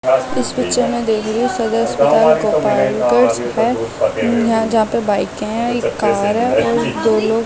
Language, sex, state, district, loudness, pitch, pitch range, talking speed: Hindi, female, Delhi, New Delhi, -16 LUFS, 225 Hz, 220-235 Hz, 120 wpm